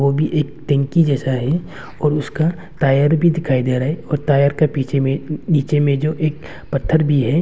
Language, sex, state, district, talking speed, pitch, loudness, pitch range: Hindi, male, Arunachal Pradesh, Longding, 200 wpm, 150 Hz, -18 LUFS, 140-155 Hz